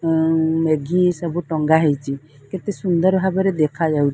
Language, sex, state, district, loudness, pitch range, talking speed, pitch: Odia, female, Odisha, Sambalpur, -19 LUFS, 155-180 Hz, 130 wpm, 160 Hz